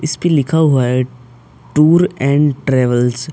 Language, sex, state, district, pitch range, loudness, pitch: Hindi, male, Uttar Pradesh, Budaun, 125-155 Hz, -14 LUFS, 140 Hz